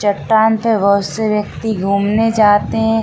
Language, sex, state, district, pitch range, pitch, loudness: Hindi, female, Bihar, Saran, 200-220 Hz, 210 Hz, -14 LUFS